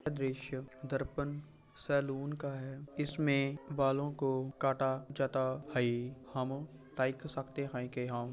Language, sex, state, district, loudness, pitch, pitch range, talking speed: Hindi, male, Bihar, Purnia, -36 LUFS, 135 Hz, 130-140 Hz, 130 wpm